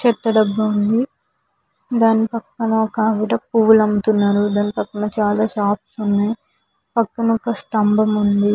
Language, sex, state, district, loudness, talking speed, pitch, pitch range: Telugu, female, Andhra Pradesh, Visakhapatnam, -18 LUFS, 120 wpm, 215 Hz, 210-225 Hz